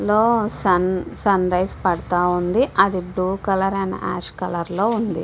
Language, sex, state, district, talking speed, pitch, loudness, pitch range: Telugu, female, Andhra Pradesh, Visakhapatnam, 135 wpm, 185 Hz, -20 LUFS, 180-200 Hz